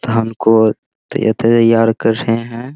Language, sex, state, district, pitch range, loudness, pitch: Hindi, male, Bihar, Araria, 110-115 Hz, -14 LUFS, 115 Hz